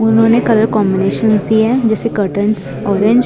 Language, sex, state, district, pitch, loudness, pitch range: Hindi, female, Himachal Pradesh, Shimla, 220 Hz, -13 LUFS, 205-225 Hz